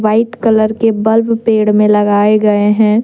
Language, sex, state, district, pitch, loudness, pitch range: Hindi, female, Jharkhand, Deoghar, 215 Hz, -11 LUFS, 210-225 Hz